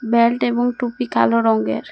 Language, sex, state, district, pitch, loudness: Bengali, female, Assam, Hailakandi, 230 Hz, -18 LUFS